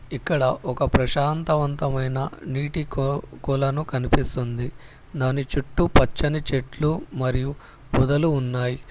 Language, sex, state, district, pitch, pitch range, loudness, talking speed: Telugu, male, Telangana, Hyderabad, 135 Hz, 130-150 Hz, -24 LUFS, 85 wpm